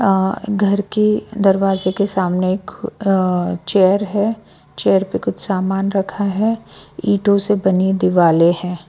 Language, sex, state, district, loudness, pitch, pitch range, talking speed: Hindi, female, Bihar, West Champaran, -17 LUFS, 195 Hz, 185-205 Hz, 140 wpm